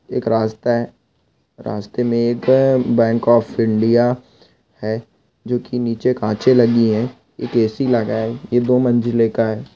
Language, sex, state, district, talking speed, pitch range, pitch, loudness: Hindi, male, Goa, North and South Goa, 145 wpm, 110-125 Hz, 120 Hz, -17 LUFS